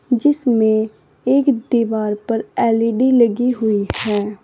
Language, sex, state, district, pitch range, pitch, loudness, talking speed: Hindi, female, Uttar Pradesh, Saharanpur, 215-245 Hz, 225 Hz, -17 LUFS, 110 wpm